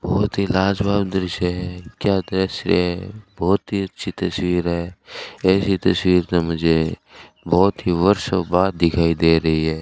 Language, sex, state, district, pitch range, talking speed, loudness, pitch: Hindi, male, Rajasthan, Bikaner, 85-95 Hz, 155 wpm, -20 LUFS, 90 Hz